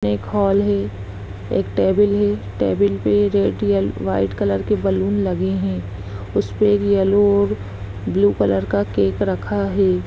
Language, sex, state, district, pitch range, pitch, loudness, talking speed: Hindi, female, Bihar, Sitamarhi, 100-105 Hz, 100 Hz, -19 LUFS, 150 wpm